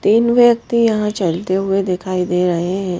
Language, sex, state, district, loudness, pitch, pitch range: Hindi, female, Madhya Pradesh, Bhopal, -16 LUFS, 195 Hz, 180-220 Hz